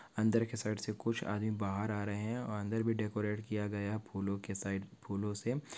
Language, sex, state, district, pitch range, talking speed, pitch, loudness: Hindi, male, Maharashtra, Nagpur, 100-110 Hz, 220 wpm, 105 Hz, -37 LUFS